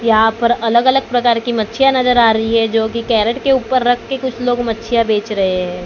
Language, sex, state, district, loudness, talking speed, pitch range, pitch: Hindi, female, Maharashtra, Gondia, -15 LUFS, 235 wpm, 220-245 Hz, 230 Hz